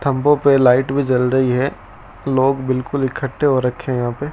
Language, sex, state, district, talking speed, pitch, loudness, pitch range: Hindi, male, Rajasthan, Bikaner, 210 wpm, 130 Hz, -17 LUFS, 125-140 Hz